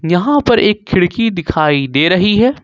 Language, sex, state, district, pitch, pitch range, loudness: Hindi, male, Jharkhand, Ranchi, 190 Hz, 170-230 Hz, -13 LUFS